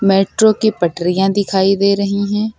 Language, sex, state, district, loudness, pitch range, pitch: Hindi, female, Uttar Pradesh, Lucknow, -15 LUFS, 195-205 Hz, 200 Hz